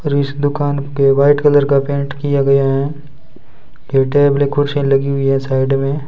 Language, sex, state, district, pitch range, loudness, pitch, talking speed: Hindi, male, Rajasthan, Bikaner, 135-145 Hz, -15 LUFS, 140 Hz, 190 wpm